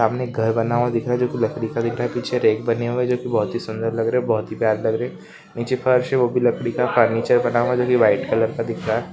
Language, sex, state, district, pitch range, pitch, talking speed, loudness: Hindi, male, Uttarakhand, Uttarkashi, 115-125 Hz, 120 Hz, 335 wpm, -20 LUFS